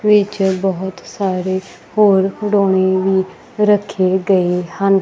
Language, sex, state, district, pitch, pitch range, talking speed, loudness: Punjabi, female, Punjab, Kapurthala, 190 Hz, 185-200 Hz, 105 wpm, -16 LUFS